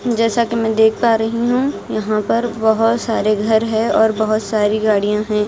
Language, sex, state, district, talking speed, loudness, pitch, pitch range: Hindi, female, Himachal Pradesh, Shimla, 195 wpm, -16 LUFS, 220 Hz, 215-230 Hz